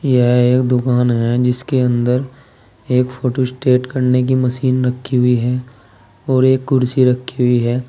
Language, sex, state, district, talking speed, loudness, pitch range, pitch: Hindi, male, Uttar Pradesh, Saharanpur, 150 wpm, -16 LUFS, 125-130 Hz, 125 Hz